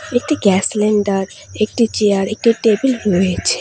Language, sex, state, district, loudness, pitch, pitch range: Bengali, female, West Bengal, Alipurduar, -16 LUFS, 215 Hz, 200-240 Hz